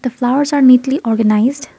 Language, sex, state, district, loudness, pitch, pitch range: English, female, Assam, Kamrup Metropolitan, -13 LUFS, 255 Hz, 235-275 Hz